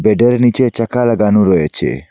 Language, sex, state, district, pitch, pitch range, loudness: Bengali, male, Assam, Hailakandi, 115 Hz, 105-120 Hz, -13 LUFS